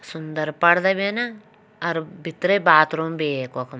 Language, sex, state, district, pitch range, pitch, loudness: Kumaoni, female, Uttarakhand, Tehri Garhwal, 155-195 Hz, 165 Hz, -21 LUFS